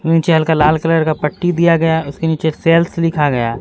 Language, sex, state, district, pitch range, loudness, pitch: Hindi, male, Bihar, Katihar, 155-165 Hz, -14 LUFS, 160 Hz